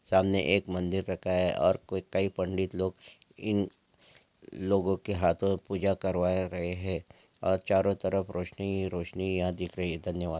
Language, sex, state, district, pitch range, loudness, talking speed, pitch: Angika, male, Bihar, Madhepura, 90-95 Hz, -30 LUFS, 160 wpm, 95 Hz